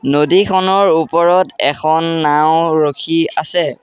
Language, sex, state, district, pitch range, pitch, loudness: Assamese, male, Assam, Sonitpur, 150-175 Hz, 160 Hz, -13 LUFS